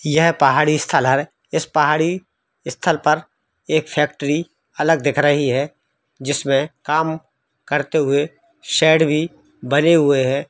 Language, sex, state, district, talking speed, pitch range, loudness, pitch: Hindi, male, Jharkhand, Sahebganj, 125 wpm, 145-160 Hz, -18 LUFS, 150 Hz